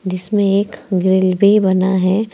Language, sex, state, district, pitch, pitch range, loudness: Hindi, female, Uttar Pradesh, Saharanpur, 190 Hz, 185-205 Hz, -15 LUFS